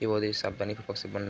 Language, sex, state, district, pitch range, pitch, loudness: Hindi, male, Bihar, Araria, 100-105 Hz, 100 Hz, -32 LUFS